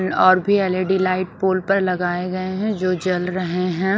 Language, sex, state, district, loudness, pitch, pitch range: Hindi, female, Haryana, Rohtak, -20 LUFS, 185 Hz, 180-190 Hz